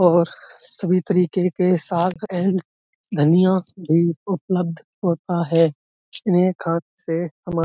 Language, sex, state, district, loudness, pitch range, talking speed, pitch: Hindi, male, Uttar Pradesh, Budaun, -21 LUFS, 170-185 Hz, 125 wpm, 180 Hz